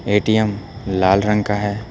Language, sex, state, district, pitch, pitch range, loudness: Hindi, male, Uttar Pradesh, Lucknow, 105 Hz, 100-105 Hz, -18 LUFS